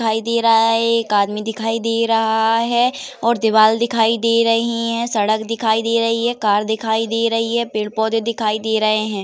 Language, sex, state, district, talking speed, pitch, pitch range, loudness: Hindi, female, Uttar Pradesh, Varanasi, 210 wpm, 225 Hz, 220-230 Hz, -17 LUFS